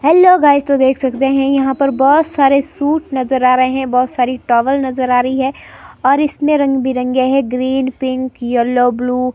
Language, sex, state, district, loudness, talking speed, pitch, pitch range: Hindi, female, Himachal Pradesh, Shimla, -14 LUFS, 205 wpm, 265 Hz, 255-275 Hz